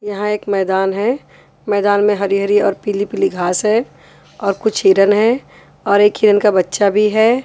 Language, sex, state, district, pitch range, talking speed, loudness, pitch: Hindi, female, Haryana, Charkhi Dadri, 200-210 Hz, 195 wpm, -15 LUFS, 205 Hz